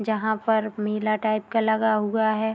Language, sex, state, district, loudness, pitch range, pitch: Hindi, female, Bihar, Madhepura, -24 LUFS, 215-220 Hz, 220 Hz